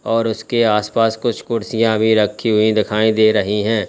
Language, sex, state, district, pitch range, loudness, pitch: Hindi, male, Uttar Pradesh, Lalitpur, 105-115 Hz, -16 LUFS, 110 Hz